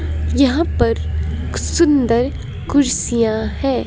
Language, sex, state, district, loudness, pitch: Hindi, female, Himachal Pradesh, Shimla, -17 LUFS, 220 Hz